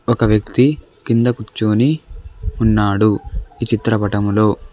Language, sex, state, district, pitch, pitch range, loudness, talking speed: Telugu, male, Andhra Pradesh, Sri Satya Sai, 110 Hz, 105-120 Hz, -16 LUFS, 90 wpm